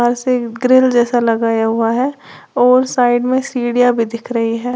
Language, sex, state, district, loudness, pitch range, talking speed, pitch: Hindi, female, Uttar Pradesh, Lalitpur, -14 LUFS, 230-255 Hz, 165 wpm, 245 Hz